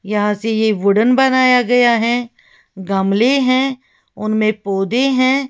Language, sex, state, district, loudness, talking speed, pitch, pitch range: Hindi, female, Uttar Pradesh, Lalitpur, -15 LUFS, 130 wpm, 230 Hz, 210-255 Hz